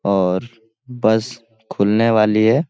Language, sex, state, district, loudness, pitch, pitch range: Hindi, male, Bihar, Lakhisarai, -17 LUFS, 110 Hz, 105-115 Hz